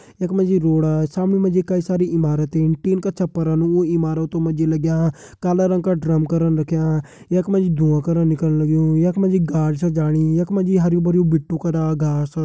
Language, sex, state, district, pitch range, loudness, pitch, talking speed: Hindi, male, Uttarakhand, Uttarkashi, 160-180 Hz, -19 LUFS, 165 Hz, 210 wpm